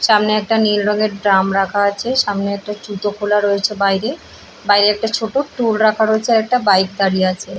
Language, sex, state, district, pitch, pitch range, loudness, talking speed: Bengali, female, West Bengal, Purulia, 210 Hz, 200-220 Hz, -16 LUFS, 195 wpm